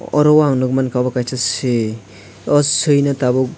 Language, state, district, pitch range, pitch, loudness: Kokborok, Tripura, West Tripura, 125-145 Hz, 130 Hz, -16 LUFS